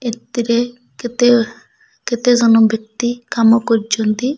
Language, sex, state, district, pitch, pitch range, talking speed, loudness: Odia, male, Odisha, Malkangiri, 240 Hz, 230-245 Hz, 95 wpm, -15 LUFS